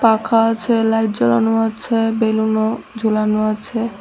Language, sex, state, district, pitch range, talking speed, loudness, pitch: Bengali, female, Tripura, West Tripura, 220-225 Hz, 120 wpm, -17 LUFS, 225 Hz